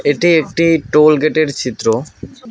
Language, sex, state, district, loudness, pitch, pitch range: Bengali, male, West Bengal, Alipurduar, -13 LUFS, 155 Hz, 145-165 Hz